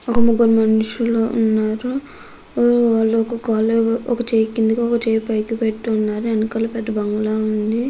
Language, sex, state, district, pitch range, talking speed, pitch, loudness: Telugu, female, Andhra Pradesh, Krishna, 220-230 Hz, 135 wpm, 225 Hz, -18 LUFS